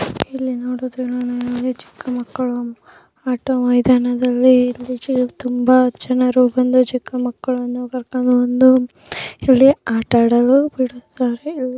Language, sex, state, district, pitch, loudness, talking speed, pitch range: Kannada, female, Karnataka, Dakshina Kannada, 250 Hz, -17 LUFS, 75 wpm, 245-255 Hz